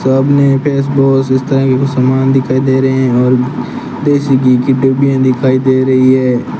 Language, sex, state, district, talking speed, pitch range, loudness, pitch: Hindi, male, Rajasthan, Bikaner, 175 wpm, 130-135 Hz, -11 LUFS, 130 Hz